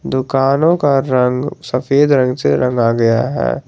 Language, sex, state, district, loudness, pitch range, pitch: Hindi, male, Jharkhand, Garhwa, -14 LUFS, 125-140 Hz, 130 Hz